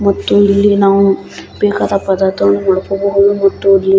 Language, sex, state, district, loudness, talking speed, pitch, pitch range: Kannada, male, Karnataka, Belgaum, -12 LUFS, 105 wpm, 195 Hz, 195-200 Hz